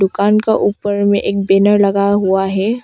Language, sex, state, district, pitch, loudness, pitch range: Hindi, female, Arunachal Pradesh, Longding, 200 Hz, -14 LUFS, 195-205 Hz